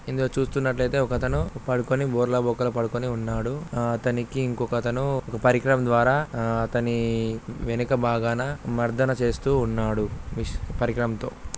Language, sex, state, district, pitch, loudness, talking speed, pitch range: Telugu, male, Andhra Pradesh, Guntur, 120 Hz, -25 LUFS, 140 wpm, 115-130 Hz